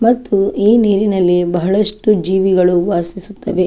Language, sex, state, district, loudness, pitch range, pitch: Kannada, female, Karnataka, Chamarajanagar, -14 LUFS, 180-210 Hz, 195 Hz